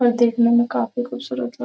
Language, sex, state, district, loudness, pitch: Hindi, female, Bihar, Gopalganj, -20 LUFS, 235 Hz